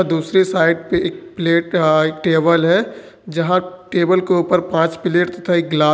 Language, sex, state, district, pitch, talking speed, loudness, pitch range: Hindi, male, Jharkhand, Ranchi, 175 Hz, 190 wpm, -16 LUFS, 165-185 Hz